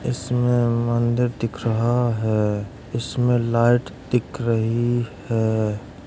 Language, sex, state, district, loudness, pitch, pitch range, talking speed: Hindi, male, Uttar Pradesh, Jalaun, -22 LUFS, 120 Hz, 115-120 Hz, 100 wpm